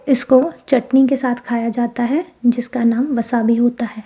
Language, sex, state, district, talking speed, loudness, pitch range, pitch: Hindi, female, Rajasthan, Jaipur, 190 wpm, -17 LUFS, 235-265 Hz, 245 Hz